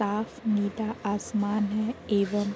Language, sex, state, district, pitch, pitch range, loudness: Hindi, female, Uttar Pradesh, Deoria, 210 Hz, 205-215 Hz, -28 LUFS